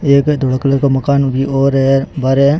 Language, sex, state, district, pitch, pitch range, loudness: Rajasthani, male, Rajasthan, Churu, 135 Hz, 135-140 Hz, -13 LUFS